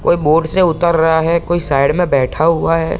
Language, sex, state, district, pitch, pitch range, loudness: Hindi, male, Bihar, Sitamarhi, 165 Hz, 155-170 Hz, -14 LUFS